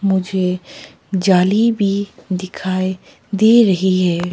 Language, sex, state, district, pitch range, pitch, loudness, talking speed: Hindi, female, Arunachal Pradesh, Papum Pare, 185-200 Hz, 185 Hz, -16 LUFS, 95 wpm